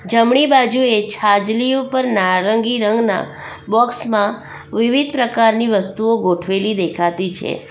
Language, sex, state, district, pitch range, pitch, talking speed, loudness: Gujarati, female, Gujarat, Valsad, 200-240 Hz, 220 Hz, 110 wpm, -16 LUFS